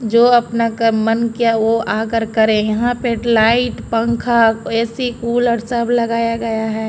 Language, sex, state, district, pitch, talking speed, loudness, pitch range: Hindi, female, Bihar, Patna, 230 Hz, 155 wpm, -16 LUFS, 225-235 Hz